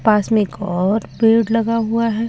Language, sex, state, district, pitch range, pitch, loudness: Hindi, female, Bihar, Katihar, 210-230 Hz, 225 Hz, -17 LUFS